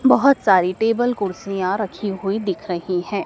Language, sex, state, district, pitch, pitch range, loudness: Hindi, male, Madhya Pradesh, Dhar, 200 Hz, 185-220 Hz, -20 LUFS